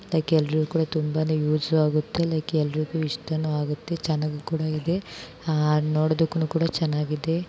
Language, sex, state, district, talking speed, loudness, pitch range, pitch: Kannada, female, Karnataka, Bijapur, 120 wpm, -25 LUFS, 150-160 Hz, 155 Hz